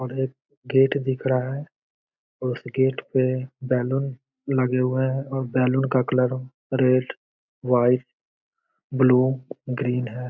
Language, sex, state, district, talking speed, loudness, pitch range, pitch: Hindi, male, Bihar, Begusarai, 135 wpm, -23 LUFS, 125-130 Hz, 130 Hz